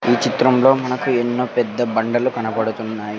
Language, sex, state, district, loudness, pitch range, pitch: Telugu, male, Andhra Pradesh, Sri Satya Sai, -18 LUFS, 110-125 Hz, 120 Hz